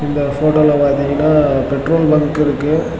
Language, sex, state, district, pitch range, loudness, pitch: Tamil, male, Tamil Nadu, Namakkal, 140-155 Hz, -14 LUFS, 150 Hz